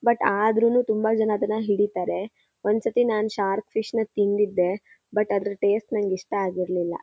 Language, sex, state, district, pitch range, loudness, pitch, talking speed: Kannada, female, Karnataka, Shimoga, 200-220 Hz, -24 LUFS, 210 Hz, 155 wpm